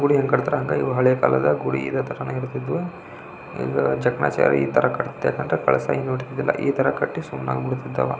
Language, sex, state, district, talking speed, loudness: Kannada, male, Karnataka, Belgaum, 125 wpm, -22 LUFS